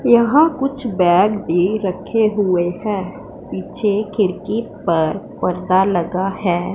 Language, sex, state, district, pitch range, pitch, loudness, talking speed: Hindi, female, Punjab, Pathankot, 180-215 Hz, 195 Hz, -18 LUFS, 115 wpm